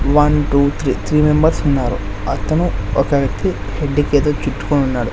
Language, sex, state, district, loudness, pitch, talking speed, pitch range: Telugu, male, Andhra Pradesh, Sri Satya Sai, -17 LUFS, 140 Hz, 150 wpm, 120-150 Hz